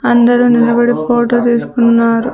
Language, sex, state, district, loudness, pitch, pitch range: Telugu, female, Andhra Pradesh, Sri Satya Sai, -11 LUFS, 240 Hz, 235-240 Hz